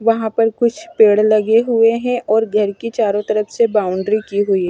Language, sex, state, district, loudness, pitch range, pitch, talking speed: Hindi, female, Punjab, Fazilka, -16 LUFS, 210-230 Hz, 220 Hz, 215 wpm